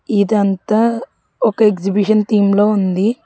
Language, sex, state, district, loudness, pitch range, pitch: Telugu, female, Telangana, Hyderabad, -15 LUFS, 200-215 Hz, 210 Hz